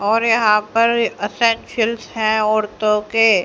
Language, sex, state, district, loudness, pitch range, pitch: Hindi, female, Haryana, Jhajjar, -17 LUFS, 210-230 Hz, 220 Hz